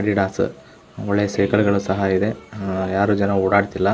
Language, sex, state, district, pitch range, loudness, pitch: Kannada, male, Karnataka, Belgaum, 95-100 Hz, -20 LUFS, 100 Hz